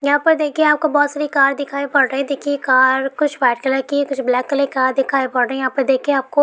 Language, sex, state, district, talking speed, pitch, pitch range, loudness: Hindi, female, Jharkhand, Jamtara, 315 wpm, 275 Hz, 265-285 Hz, -17 LUFS